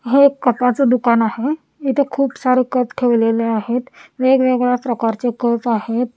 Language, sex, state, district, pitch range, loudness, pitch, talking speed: Marathi, female, Maharashtra, Washim, 235-265 Hz, -17 LUFS, 250 Hz, 135 wpm